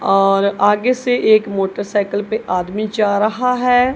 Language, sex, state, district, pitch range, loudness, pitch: Hindi, female, Punjab, Kapurthala, 200-245 Hz, -16 LUFS, 210 Hz